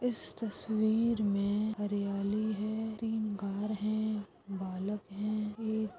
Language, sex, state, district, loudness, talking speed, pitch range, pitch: Hindi, female, Goa, North and South Goa, -34 LUFS, 110 wpm, 205-220 Hz, 215 Hz